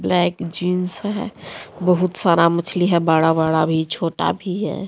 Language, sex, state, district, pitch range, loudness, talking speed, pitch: Hindi, female, Jharkhand, Deoghar, 165-180 Hz, -19 LUFS, 170 wpm, 175 Hz